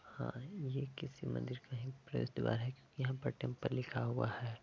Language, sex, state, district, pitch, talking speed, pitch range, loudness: Hindi, male, Uttar Pradesh, Varanasi, 125 Hz, 220 wpm, 110-135 Hz, -41 LUFS